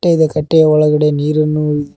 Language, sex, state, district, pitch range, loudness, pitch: Kannada, male, Karnataka, Koppal, 150-155 Hz, -13 LUFS, 150 Hz